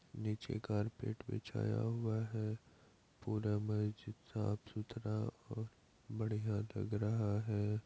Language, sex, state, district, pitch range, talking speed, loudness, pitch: Hindi, male, Bihar, Madhepura, 105-115 Hz, 105 wpm, -41 LUFS, 110 Hz